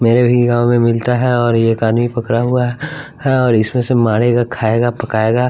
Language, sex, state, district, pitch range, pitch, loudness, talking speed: Hindi, male, Bihar, West Champaran, 115-125 Hz, 120 Hz, -14 LUFS, 195 wpm